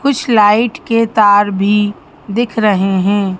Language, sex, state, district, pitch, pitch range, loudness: Hindi, male, Madhya Pradesh, Bhopal, 205 Hz, 200-230 Hz, -13 LUFS